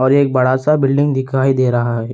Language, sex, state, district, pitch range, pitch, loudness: Hindi, male, Uttar Pradesh, Etah, 130-140 Hz, 130 Hz, -15 LUFS